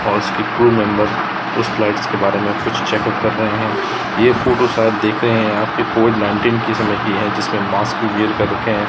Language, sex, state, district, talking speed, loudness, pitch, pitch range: Hindi, male, Rajasthan, Jaisalmer, 215 wpm, -16 LUFS, 110 Hz, 105-115 Hz